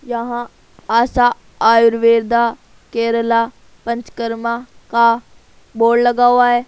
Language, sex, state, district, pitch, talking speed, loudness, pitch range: Hindi, female, Rajasthan, Jaipur, 235 Hz, 90 wpm, -16 LUFS, 230-240 Hz